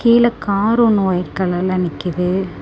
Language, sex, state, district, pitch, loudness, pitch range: Tamil, female, Tamil Nadu, Namakkal, 190 Hz, -17 LUFS, 180-220 Hz